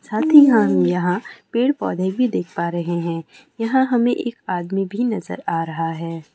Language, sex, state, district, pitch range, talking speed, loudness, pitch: Hindi, female, West Bengal, Malda, 170-240 Hz, 190 wpm, -19 LUFS, 190 Hz